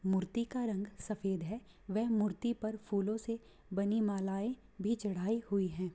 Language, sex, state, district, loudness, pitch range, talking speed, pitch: Hindi, female, Bihar, Samastipur, -37 LUFS, 195-225 Hz, 160 wpm, 210 Hz